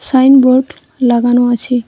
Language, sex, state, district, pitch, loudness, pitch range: Bengali, female, West Bengal, Cooch Behar, 255 Hz, -10 LUFS, 245-260 Hz